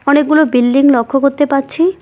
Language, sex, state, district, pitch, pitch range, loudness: Bengali, female, West Bengal, Cooch Behar, 280 Hz, 275-300 Hz, -12 LUFS